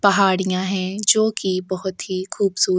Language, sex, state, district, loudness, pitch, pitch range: Hindi, female, Uttarakhand, Tehri Garhwal, -20 LUFS, 190 Hz, 185-200 Hz